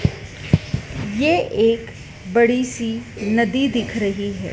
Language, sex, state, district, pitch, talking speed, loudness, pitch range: Hindi, female, Madhya Pradesh, Dhar, 230 Hz, 105 wpm, -20 LUFS, 215-235 Hz